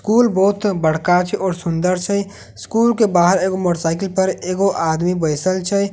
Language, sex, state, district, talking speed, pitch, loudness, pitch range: Maithili, male, Bihar, Katihar, 170 wpm, 185 Hz, -17 LUFS, 175-200 Hz